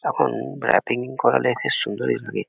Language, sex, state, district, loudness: Bengali, male, West Bengal, Kolkata, -22 LUFS